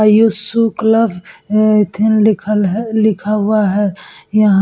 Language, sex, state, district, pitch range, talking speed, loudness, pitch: Hindi, female, Uttar Pradesh, Etah, 205-220 Hz, 155 wpm, -14 LUFS, 215 Hz